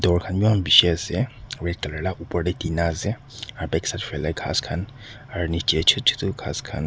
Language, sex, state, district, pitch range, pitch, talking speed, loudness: Nagamese, male, Nagaland, Dimapur, 85-115 Hz, 90 Hz, 210 wpm, -23 LUFS